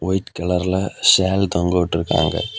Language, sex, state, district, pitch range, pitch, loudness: Tamil, male, Tamil Nadu, Kanyakumari, 85-95 Hz, 90 Hz, -18 LUFS